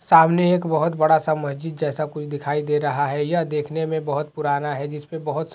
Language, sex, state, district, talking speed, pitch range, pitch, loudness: Hindi, male, Uttar Pradesh, Hamirpur, 215 wpm, 145-160 Hz, 150 Hz, -22 LUFS